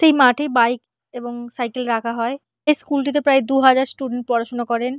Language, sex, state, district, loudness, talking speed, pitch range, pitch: Bengali, female, West Bengal, Purulia, -19 LUFS, 190 wpm, 240-275 Hz, 250 Hz